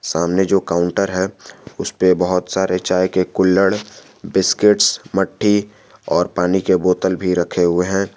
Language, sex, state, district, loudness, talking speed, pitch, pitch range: Hindi, male, Jharkhand, Garhwa, -17 LUFS, 155 wpm, 95 Hz, 90-95 Hz